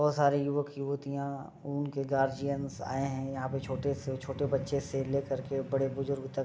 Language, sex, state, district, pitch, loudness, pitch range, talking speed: Hindi, male, Uttar Pradesh, Deoria, 140 Hz, -33 LUFS, 135-140 Hz, 205 wpm